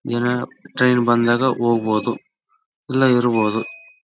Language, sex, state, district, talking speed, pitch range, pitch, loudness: Kannada, male, Karnataka, Raichur, 90 wpm, 120-130 Hz, 120 Hz, -19 LUFS